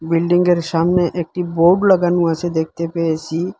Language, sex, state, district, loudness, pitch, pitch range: Bengali, male, Assam, Hailakandi, -17 LUFS, 170 Hz, 165-175 Hz